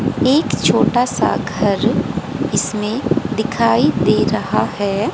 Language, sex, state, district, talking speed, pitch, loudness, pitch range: Hindi, female, Haryana, Jhajjar, 105 wpm, 225 Hz, -17 LUFS, 205-245 Hz